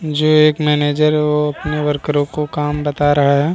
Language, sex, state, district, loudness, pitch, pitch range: Hindi, male, Bihar, Vaishali, -15 LUFS, 150 Hz, 145-150 Hz